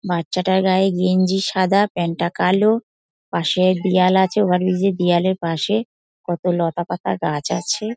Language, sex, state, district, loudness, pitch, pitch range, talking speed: Bengali, female, West Bengal, Dakshin Dinajpur, -19 LUFS, 185 Hz, 175-195 Hz, 135 wpm